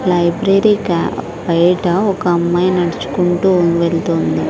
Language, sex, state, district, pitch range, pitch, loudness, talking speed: Telugu, female, Andhra Pradesh, Sri Satya Sai, 170-185 Hz, 175 Hz, -15 LUFS, 95 wpm